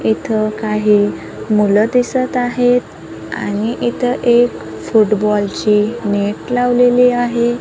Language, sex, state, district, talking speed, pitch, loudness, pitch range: Marathi, female, Maharashtra, Gondia, 105 wpm, 220 Hz, -15 LUFS, 210-245 Hz